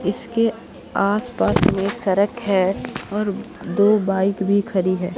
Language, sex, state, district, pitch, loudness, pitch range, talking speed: Hindi, female, Bihar, Katihar, 200 Hz, -20 LUFS, 190-210 Hz, 130 wpm